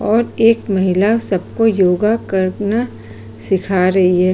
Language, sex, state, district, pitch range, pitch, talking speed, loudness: Hindi, female, Uttar Pradesh, Jyotiba Phule Nagar, 185-225 Hz, 190 Hz, 125 wpm, -15 LUFS